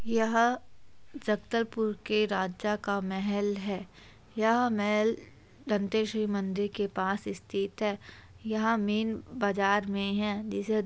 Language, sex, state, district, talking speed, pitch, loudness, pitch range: Hindi, female, Chhattisgarh, Bastar, 120 wpm, 210 Hz, -30 LUFS, 200-220 Hz